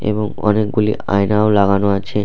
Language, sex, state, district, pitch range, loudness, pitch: Bengali, male, West Bengal, Purulia, 100-105 Hz, -16 LUFS, 105 Hz